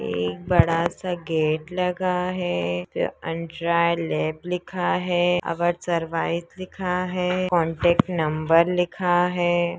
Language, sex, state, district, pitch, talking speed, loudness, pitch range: Hindi, female, Uttar Pradesh, Deoria, 175 Hz, 110 wpm, -23 LUFS, 165-180 Hz